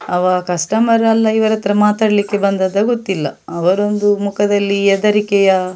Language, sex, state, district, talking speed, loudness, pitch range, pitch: Kannada, female, Karnataka, Dakshina Kannada, 125 wpm, -15 LUFS, 190-210 Hz, 205 Hz